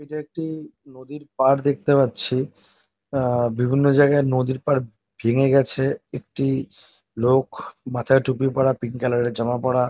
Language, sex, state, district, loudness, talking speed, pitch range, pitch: Bengali, male, West Bengal, North 24 Parganas, -21 LUFS, 140 wpm, 125-140 Hz, 130 Hz